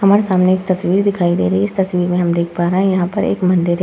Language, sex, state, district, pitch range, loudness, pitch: Hindi, female, Uttar Pradesh, Muzaffarnagar, 175-190 Hz, -15 LUFS, 180 Hz